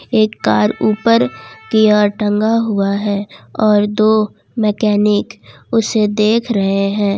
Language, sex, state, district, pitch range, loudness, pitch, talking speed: Hindi, female, Jharkhand, Ranchi, 200-215 Hz, -15 LUFS, 210 Hz, 125 wpm